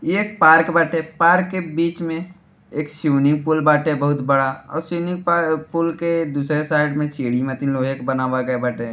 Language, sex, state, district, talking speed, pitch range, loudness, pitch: Bhojpuri, male, Uttar Pradesh, Deoria, 190 wpm, 140-170 Hz, -19 LUFS, 155 Hz